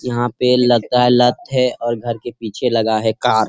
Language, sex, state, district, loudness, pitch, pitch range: Hindi, male, Bihar, Jamui, -16 LUFS, 120 Hz, 115-125 Hz